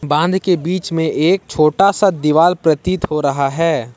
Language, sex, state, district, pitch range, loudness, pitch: Hindi, male, Jharkhand, Ranchi, 150-185 Hz, -15 LUFS, 165 Hz